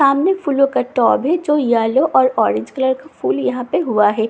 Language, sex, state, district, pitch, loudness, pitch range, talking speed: Hindi, female, Bihar, Katihar, 260 Hz, -16 LUFS, 230-285 Hz, 225 wpm